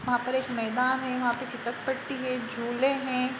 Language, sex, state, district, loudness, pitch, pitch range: Hindi, female, Uttar Pradesh, Jalaun, -29 LUFS, 255 Hz, 240-260 Hz